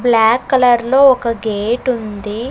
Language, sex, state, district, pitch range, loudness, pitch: Telugu, female, Andhra Pradesh, Sri Satya Sai, 220-255 Hz, -14 LUFS, 235 Hz